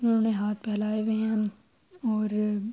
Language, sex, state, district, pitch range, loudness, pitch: Urdu, female, Andhra Pradesh, Anantapur, 210-220 Hz, -28 LUFS, 215 Hz